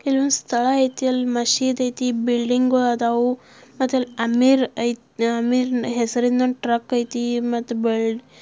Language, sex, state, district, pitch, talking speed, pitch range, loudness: Kannada, female, Karnataka, Belgaum, 245 Hz, 130 wpm, 235-255 Hz, -20 LUFS